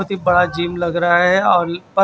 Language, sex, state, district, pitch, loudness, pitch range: Hindi, male, Chhattisgarh, Raipur, 175 Hz, -16 LUFS, 175-185 Hz